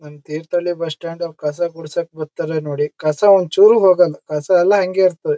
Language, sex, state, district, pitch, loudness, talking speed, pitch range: Kannada, male, Karnataka, Shimoga, 165 Hz, -16 LUFS, 180 wpm, 155-180 Hz